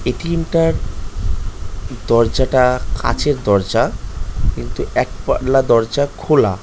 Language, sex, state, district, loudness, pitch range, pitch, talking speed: Bengali, male, West Bengal, North 24 Parganas, -17 LUFS, 95-130 Hz, 115 Hz, 90 wpm